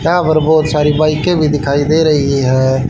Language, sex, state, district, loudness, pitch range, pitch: Hindi, male, Haryana, Charkhi Dadri, -12 LUFS, 140-155 Hz, 155 Hz